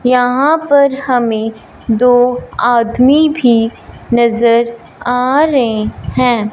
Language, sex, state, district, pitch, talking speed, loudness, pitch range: Hindi, female, Punjab, Fazilka, 245 Hz, 90 wpm, -12 LUFS, 235-265 Hz